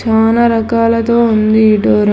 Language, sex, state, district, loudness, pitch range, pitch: Telugu, female, Telangana, Hyderabad, -11 LUFS, 215-230 Hz, 225 Hz